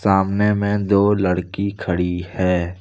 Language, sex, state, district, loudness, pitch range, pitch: Hindi, male, Jharkhand, Deoghar, -19 LUFS, 90-100 Hz, 95 Hz